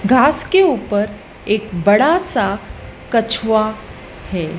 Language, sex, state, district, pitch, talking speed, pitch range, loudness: Hindi, female, Madhya Pradesh, Dhar, 220 Hz, 105 wpm, 205-260 Hz, -16 LUFS